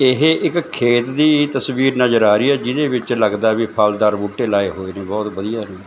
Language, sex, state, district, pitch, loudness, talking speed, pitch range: Punjabi, male, Punjab, Fazilka, 115 Hz, -17 LUFS, 215 wpm, 105-135 Hz